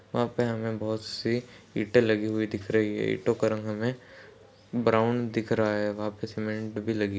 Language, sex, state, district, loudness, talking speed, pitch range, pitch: Hindi, male, Uttar Pradesh, Jalaun, -28 LUFS, 215 wpm, 110-115 Hz, 110 Hz